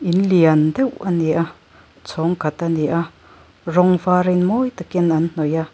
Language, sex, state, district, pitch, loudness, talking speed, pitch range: Mizo, female, Mizoram, Aizawl, 170 Hz, -18 LUFS, 190 wpm, 160-180 Hz